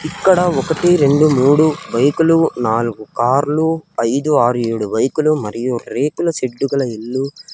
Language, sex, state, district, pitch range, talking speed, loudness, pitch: Telugu, male, Andhra Pradesh, Sri Satya Sai, 125-160 Hz, 125 wpm, -16 LUFS, 145 Hz